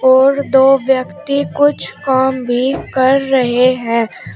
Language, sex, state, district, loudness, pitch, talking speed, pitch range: Hindi, female, Uttar Pradesh, Shamli, -13 LUFS, 260 Hz, 125 wpm, 250-270 Hz